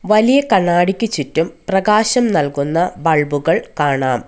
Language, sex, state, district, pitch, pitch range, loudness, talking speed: Malayalam, female, Kerala, Kollam, 175 Hz, 145-210 Hz, -15 LUFS, 100 wpm